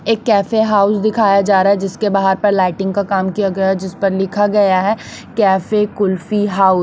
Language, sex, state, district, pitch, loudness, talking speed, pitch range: Hindi, female, Chhattisgarh, Raipur, 200 Hz, -15 LUFS, 220 wpm, 190-210 Hz